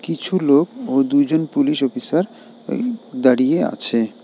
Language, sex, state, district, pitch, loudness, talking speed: Bengali, male, West Bengal, Alipurduar, 160 Hz, -18 LUFS, 130 wpm